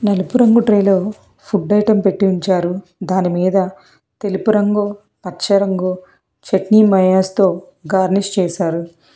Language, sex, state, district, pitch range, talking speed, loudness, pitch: Telugu, female, Telangana, Hyderabad, 185-205 Hz, 105 wpm, -16 LUFS, 195 Hz